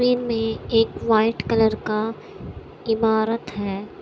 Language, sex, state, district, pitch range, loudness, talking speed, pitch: Hindi, female, Bihar, Kishanganj, 215-225 Hz, -22 LUFS, 135 wpm, 225 Hz